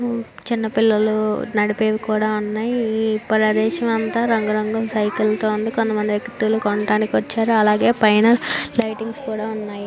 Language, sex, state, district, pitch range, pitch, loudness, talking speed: Telugu, female, Andhra Pradesh, Anantapur, 215-225 Hz, 220 Hz, -19 LUFS, 130 wpm